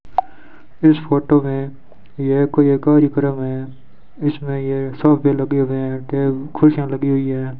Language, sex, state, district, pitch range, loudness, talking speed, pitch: Hindi, male, Rajasthan, Bikaner, 135-145 Hz, -17 LUFS, 140 wpm, 140 Hz